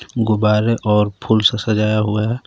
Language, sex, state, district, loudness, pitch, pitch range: Hindi, male, Jharkhand, Garhwa, -16 LUFS, 110 Hz, 105-115 Hz